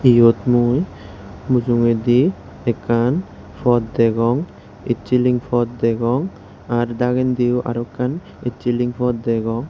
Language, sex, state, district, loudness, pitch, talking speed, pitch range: Chakma, male, Tripura, West Tripura, -19 LUFS, 120 Hz, 100 wpm, 115-125 Hz